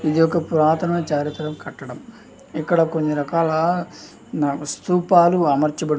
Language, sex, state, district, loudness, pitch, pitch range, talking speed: Telugu, male, Andhra Pradesh, Anantapur, -20 LUFS, 160 Hz, 150-170 Hz, 100 wpm